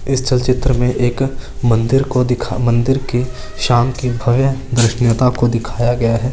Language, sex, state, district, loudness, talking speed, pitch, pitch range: Marwari, male, Rajasthan, Churu, -16 LUFS, 150 wpm, 125 Hz, 120-130 Hz